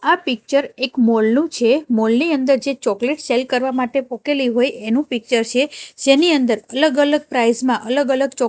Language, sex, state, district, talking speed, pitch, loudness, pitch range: Gujarati, female, Gujarat, Gandhinagar, 200 wpm, 260 Hz, -17 LUFS, 245-280 Hz